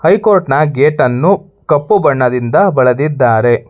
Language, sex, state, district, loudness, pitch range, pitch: Kannada, male, Karnataka, Bangalore, -11 LUFS, 125-195 Hz, 145 Hz